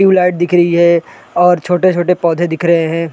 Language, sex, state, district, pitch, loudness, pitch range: Hindi, male, Chhattisgarh, Raigarh, 175 Hz, -12 LUFS, 170-180 Hz